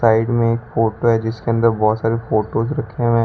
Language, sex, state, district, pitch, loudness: Hindi, male, Rajasthan, Bikaner, 115 Hz, -18 LUFS